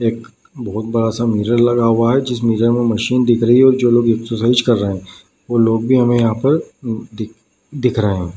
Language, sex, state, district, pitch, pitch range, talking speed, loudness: Hindi, male, Bihar, Madhepura, 115 Hz, 110-120 Hz, 220 wpm, -15 LUFS